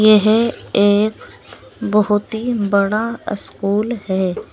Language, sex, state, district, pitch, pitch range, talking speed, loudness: Hindi, female, Uttar Pradesh, Saharanpur, 210 Hz, 205-220 Hz, 95 wpm, -17 LUFS